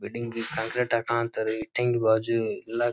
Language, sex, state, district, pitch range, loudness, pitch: Kannada, male, Karnataka, Dharwad, 110-120 Hz, -27 LUFS, 115 Hz